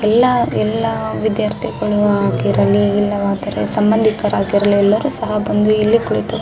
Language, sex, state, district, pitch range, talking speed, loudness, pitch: Kannada, female, Karnataka, Raichur, 205-220 Hz, 120 wpm, -16 LUFS, 210 Hz